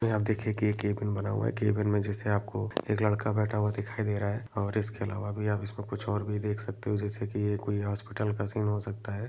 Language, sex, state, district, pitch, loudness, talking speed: Hindi, male, Jharkhand, Sahebganj, 105 Hz, -31 LUFS, 270 wpm